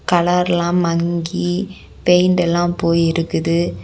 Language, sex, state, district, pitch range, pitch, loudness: Tamil, female, Tamil Nadu, Kanyakumari, 170-180 Hz, 175 Hz, -17 LUFS